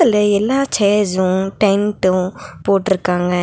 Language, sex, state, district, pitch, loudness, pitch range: Tamil, female, Tamil Nadu, Nilgiris, 200 Hz, -16 LUFS, 185-210 Hz